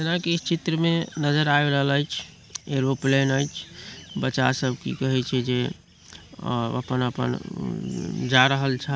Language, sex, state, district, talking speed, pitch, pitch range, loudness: Maithili, male, Bihar, Samastipur, 115 wpm, 135 Hz, 130-150 Hz, -24 LUFS